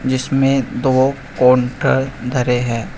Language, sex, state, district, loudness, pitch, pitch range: Hindi, male, Uttar Pradesh, Shamli, -16 LUFS, 130 Hz, 125-135 Hz